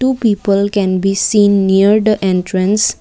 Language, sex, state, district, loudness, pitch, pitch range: English, female, Assam, Kamrup Metropolitan, -13 LUFS, 200 Hz, 195-215 Hz